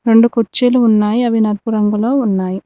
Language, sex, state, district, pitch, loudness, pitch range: Telugu, female, Telangana, Mahabubabad, 225 Hz, -14 LUFS, 210-235 Hz